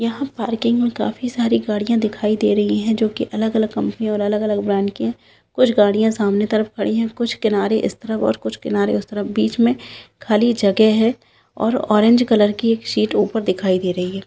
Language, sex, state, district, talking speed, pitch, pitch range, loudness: Hindi, female, Bihar, Jahanabad, 210 wpm, 215 Hz, 200-230 Hz, -18 LUFS